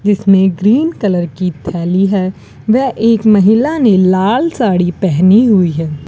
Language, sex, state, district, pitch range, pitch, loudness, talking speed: Hindi, female, Rajasthan, Bikaner, 180-225 Hz, 195 Hz, -12 LUFS, 140 wpm